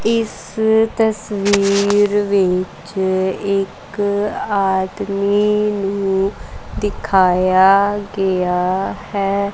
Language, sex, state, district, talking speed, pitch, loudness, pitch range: Punjabi, female, Punjab, Kapurthala, 55 wpm, 200 Hz, -17 LUFS, 190-205 Hz